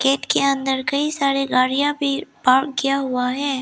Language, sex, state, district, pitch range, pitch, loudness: Hindi, female, Arunachal Pradesh, Lower Dibang Valley, 265-280 Hz, 275 Hz, -19 LUFS